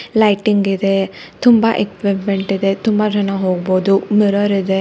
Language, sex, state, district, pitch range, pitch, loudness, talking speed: Kannada, female, Karnataka, Bangalore, 195-210 Hz, 200 Hz, -15 LUFS, 125 wpm